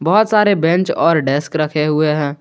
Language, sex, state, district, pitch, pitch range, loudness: Hindi, male, Jharkhand, Garhwa, 155 Hz, 150-180 Hz, -15 LUFS